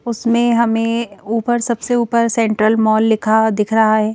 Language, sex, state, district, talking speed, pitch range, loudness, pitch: Hindi, female, Madhya Pradesh, Bhopal, 160 wpm, 220-235 Hz, -15 LUFS, 225 Hz